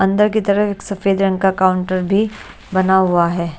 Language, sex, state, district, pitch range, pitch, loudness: Hindi, female, Haryana, Charkhi Dadri, 185-200 Hz, 190 Hz, -16 LUFS